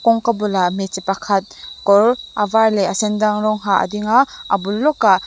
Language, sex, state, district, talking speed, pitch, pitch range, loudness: Mizo, female, Mizoram, Aizawl, 205 wpm, 210 Hz, 195-230 Hz, -17 LUFS